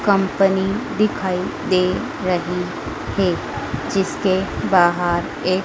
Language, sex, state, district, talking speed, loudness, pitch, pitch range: Hindi, female, Madhya Pradesh, Dhar, 85 wpm, -20 LUFS, 185 Hz, 180-195 Hz